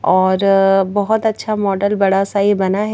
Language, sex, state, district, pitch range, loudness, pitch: Hindi, female, Madhya Pradesh, Bhopal, 195-205 Hz, -15 LUFS, 200 Hz